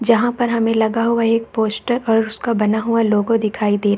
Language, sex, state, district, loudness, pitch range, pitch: Hindi, female, Bihar, Saharsa, -17 LUFS, 215-230 Hz, 225 Hz